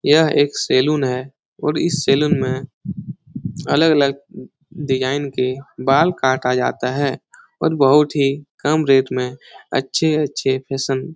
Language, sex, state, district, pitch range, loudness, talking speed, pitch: Hindi, male, Bihar, Jahanabad, 130-150 Hz, -18 LUFS, 130 wpm, 140 Hz